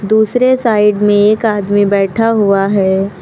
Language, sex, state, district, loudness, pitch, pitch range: Hindi, female, Uttar Pradesh, Lucknow, -12 LUFS, 205 Hz, 200-220 Hz